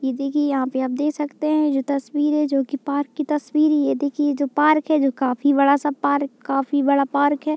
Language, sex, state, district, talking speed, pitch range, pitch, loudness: Hindi, female, Bihar, Muzaffarpur, 230 wpm, 275-295 Hz, 285 Hz, -20 LUFS